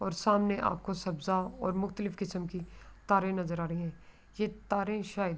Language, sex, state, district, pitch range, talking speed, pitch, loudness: Urdu, female, Andhra Pradesh, Anantapur, 180-200 Hz, 180 wpm, 190 Hz, -33 LUFS